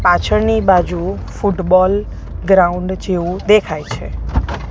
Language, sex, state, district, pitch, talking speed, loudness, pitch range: Gujarati, female, Gujarat, Gandhinagar, 185 Hz, 90 wpm, -15 LUFS, 170-195 Hz